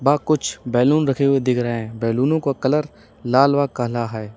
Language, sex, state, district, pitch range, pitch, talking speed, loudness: Hindi, male, Uttar Pradesh, Lalitpur, 120-140 Hz, 130 Hz, 190 wpm, -19 LUFS